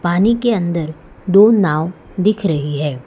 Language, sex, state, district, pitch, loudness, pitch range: Hindi, male, Gujarat, Valsad, 175 Hz, -15 LUFS, 155-205 Hz